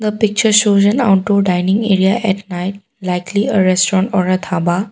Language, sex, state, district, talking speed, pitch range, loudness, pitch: English, female, Assam, Kamrup Metropolitan, 185 wpm, 185-205 Hz, -14 LUFS, 195 Hz